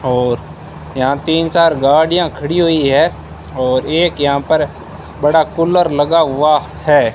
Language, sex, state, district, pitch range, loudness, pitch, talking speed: Hindi, male, Rajasthan, Bikaner, 130-160 Hz, -14 LUFS, 145 Hz, 145 wpm